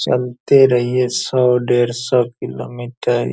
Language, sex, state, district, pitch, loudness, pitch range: Hindi, male, Bihar, Purnia, 125 Hz, -16 LUFS, 120-125 Hz